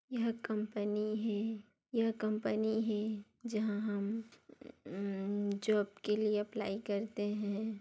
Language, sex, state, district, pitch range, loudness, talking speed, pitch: Hindi, female, Chhattisgarh, Sarguja, 205-220 Hz, -37 LUFS, 110 wpm, 215 Hz